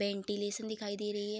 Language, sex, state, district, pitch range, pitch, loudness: Hindi, female, Bihar, Darbhanga, 205-210 Hz, 205 Hz, -37 LUFS